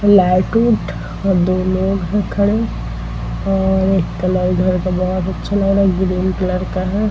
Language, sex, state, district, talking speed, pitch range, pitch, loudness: Hindi, female, Bihar, Vaishali, 170 wpm, 185-195 Hz, 185 Hz, -17 LUFS